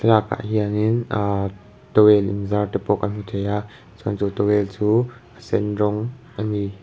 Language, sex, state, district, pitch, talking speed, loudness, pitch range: Mizo, male, Mizoram, Aizawl, 105 Hz, 195 wpm, -21 LUFS, 100-110 Hz